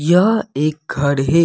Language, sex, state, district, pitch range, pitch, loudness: Hindi, male, Jharkhand, Deoghar, 145-175 Hz, 155 Hz, -17 LUFS